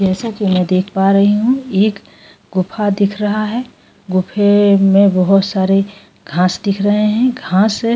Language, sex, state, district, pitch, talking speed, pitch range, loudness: Hindi, female, Goa, North and South Goa, 200 Hz, 175 wpm, 190-210 Hz, -14 LUFS